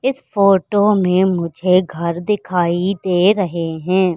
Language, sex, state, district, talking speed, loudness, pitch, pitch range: Hindi, female, Madhya Pradesh, Katni, 130 wpm, -16 LUFS, 185 Hz, 175-200 Hz